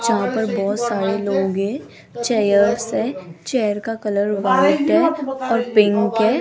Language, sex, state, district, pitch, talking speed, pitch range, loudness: Hindi, female, Rajasthan, Jaipur, 220 Hz, 150 wpm, 200-240 Hz, -19 LUFS